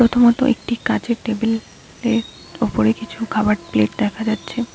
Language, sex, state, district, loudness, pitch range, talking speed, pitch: Bengali, female, West Bengal, Alipurduar, -19 LUFS, 220-235 Hz, 150 wpm, 225 Hz